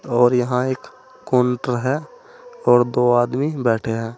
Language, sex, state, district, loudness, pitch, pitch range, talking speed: Hindi, male, Uttar Pradesh, Saharanpur, -19 LUFS, 125 Hz, 120-145 Hz, 145 wpm